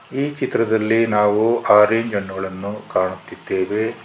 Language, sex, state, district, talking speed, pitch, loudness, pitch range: Kannada, male, Karnataka, Bangalore, 90 wpm, 105 Hz, -19 LUFS, 100-115 Hz